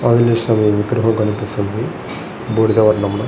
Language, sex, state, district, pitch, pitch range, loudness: Telugu, male, Andhra Pradesh, Srikakulam, 110 Hz, 105-115 Hz, -16 LUFS